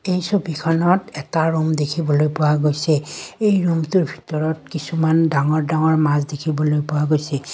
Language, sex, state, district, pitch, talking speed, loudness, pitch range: Assamese, female, Assam, Kamrup Metropolitan, 155 Hz, 135 wpm, -19 LUFS, 150-165 Hz